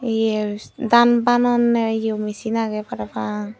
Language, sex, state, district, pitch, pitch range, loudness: Chakma, female, Tripura, Unakoti, 225 Hz, 210-235 Hz, -20 LUFS